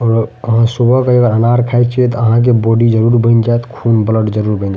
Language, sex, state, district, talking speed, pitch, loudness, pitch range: Maithili, male, Bihar, Madhepura, 250 wpm, 115 Hz, -12 LUFS, 115-120 Hz